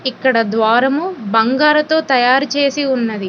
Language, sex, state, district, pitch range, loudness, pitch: Telugu, female, Telangana, Hyderabad, 230-285 Hz, -14 LUFS, 260 Hz